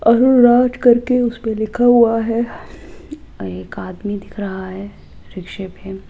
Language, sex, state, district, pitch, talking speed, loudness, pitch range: Hindi, female, Rajasthan, Jaipur, 225 Hz, 145 wpm, -16 LUFS, 195-245 Hz